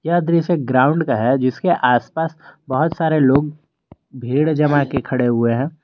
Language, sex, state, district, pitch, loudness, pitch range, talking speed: Hindi, male, Jharkhand, Garhwa, 145 Hz, -17 LUFS, 130-160 Hz, 165 wpm